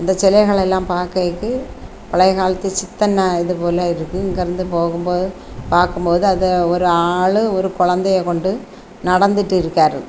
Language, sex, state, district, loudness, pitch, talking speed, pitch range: Tamil, female, Tamil Nadu, Kanyakumari, -17 LUFS, 185 Hz, 130 wpm, 175-190 Hz